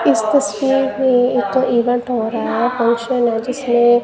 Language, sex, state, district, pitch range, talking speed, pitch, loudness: Hindi, female, Punjab, Kapurthala, 235-260 Hz, 165 wpm, 245 Hz, -16 LUFS